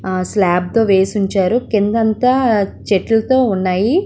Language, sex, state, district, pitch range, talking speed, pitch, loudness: Telugu, female, Andhra Pradesh, Visakhapatnam, 190-230 Hz, 105 wpm, 210 Hz, -15 LUFS